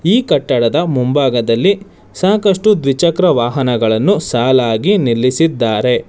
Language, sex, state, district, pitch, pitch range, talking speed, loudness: Kannada, male, Karnataka, Bangalore, 140 Hz, 120-195 Hz, 80 wpm, -13 LUFS